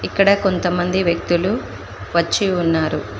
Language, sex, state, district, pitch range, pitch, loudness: Telugu, female, Telangana, Mahabubabad, 170-195 Hz, 175 Hz, -18 LUFS